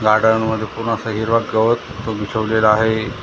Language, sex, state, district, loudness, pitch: Marathi, male, Maharashtra, Gondia, -18 LUFS, 110 Hz